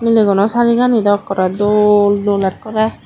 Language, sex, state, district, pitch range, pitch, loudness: Chakma, female, Tripura, Dhalai, 200-225 Hz, 205 Hz, -14 LUFS